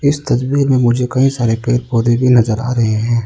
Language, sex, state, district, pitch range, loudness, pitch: Hindi, male, Arunachal Pradesh, Lower Dibang Valley, 115-130 Hz, -14 LUFS, 120 Hz